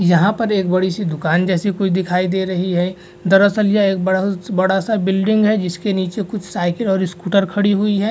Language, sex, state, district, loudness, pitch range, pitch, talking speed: Hindi, male, Bihar, Vaishali, -17 LUFS, 185-205 Hz, 190 Hz, 220 wpm